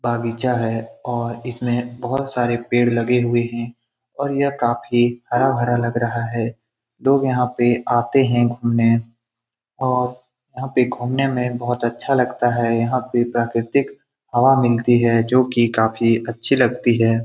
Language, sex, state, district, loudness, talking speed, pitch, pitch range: Hindi, male, Bihar, Lakhisarai, -19 LUFS, 165 wpm, 120 Hz, 115-125 Hz